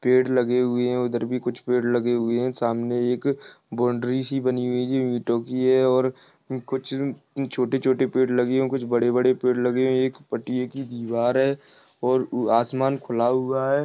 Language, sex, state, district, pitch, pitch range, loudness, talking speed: Hindi, male, Maharashtra, Nagpur, 125 Hz, 120-130 Hz, -23 LUFS, 195 wpm